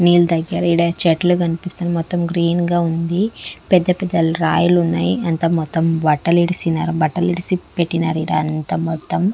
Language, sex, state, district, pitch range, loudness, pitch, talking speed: Telugu, female, Andhra Pradesh, Manyam, 160-175 Hz, -17 LUFS, 170 Hz, 120 wpm